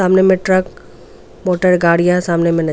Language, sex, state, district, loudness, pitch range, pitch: Hindi, female, Goa, North and South Goa, -14 LUFS, 170-185 Hz, 180 Hz